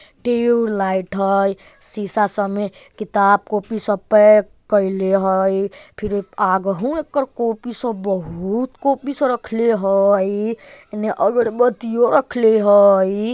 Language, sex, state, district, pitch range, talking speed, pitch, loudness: Bajjika, male, Bihar, Vaishali, 195-235 Hz, 110 wpm, 210 Hz, -18 LUFS